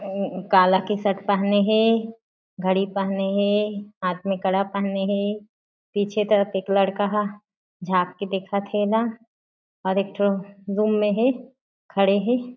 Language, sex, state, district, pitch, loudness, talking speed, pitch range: Chhattisgarhi, female, Chhattisgarh, Jashpur, 200 Hz, -23 LUFS, 150 wpm, 195-210 Hz